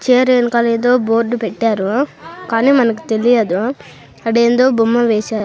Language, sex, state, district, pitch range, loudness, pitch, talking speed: Telugu, male, Andhra Pradesh, Sri Satya Sai, 225-250 Hz, -14 LUFS, 235 Hz, 130 wpm